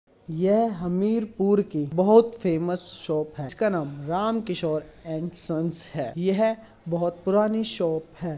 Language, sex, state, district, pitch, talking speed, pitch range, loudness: Hindi, male, Uttar Pradesh, Hamirpur, 175 Hz, 130 wpm, 160-205 Hz, -25 LUFS